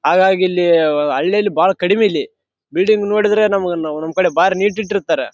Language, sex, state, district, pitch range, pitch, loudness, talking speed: Kannada, male, Karnataka, Raichur, 175-210 Hz, 190 Hz, -15 LUFS, 155 wpm